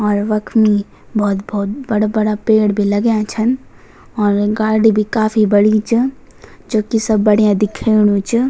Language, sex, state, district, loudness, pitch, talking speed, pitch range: Garhwali, female, Uttarakhand, Tehri Garhwal, -15 LUFS, 215 Hz, 150 wpm, 210-220 Hz